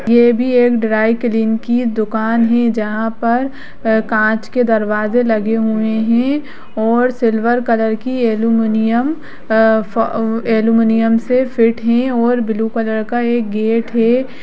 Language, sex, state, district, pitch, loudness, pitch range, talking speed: Hindi, female, Bihar, Jahanabad, 230 Hz, -15 LUFS, 220-240 Hz, 145 wpm